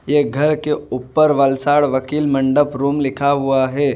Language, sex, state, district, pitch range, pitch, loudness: Hindi, male, Gujarat, Valsad, 135-145 Hz, 140 Hz, -17 LUFS